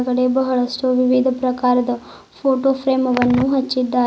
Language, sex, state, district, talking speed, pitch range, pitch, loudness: Kannada, female, Karnataka, Bidar, 120 wpm, 250-260 Hz, 255 Hz, -18 LUFS